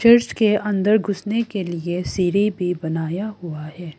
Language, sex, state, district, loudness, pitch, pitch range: Hindi, female, Arunachal Pradesh, Lower Dibang Valley, -21 LUFS, 195 Hz, 175-210 Hz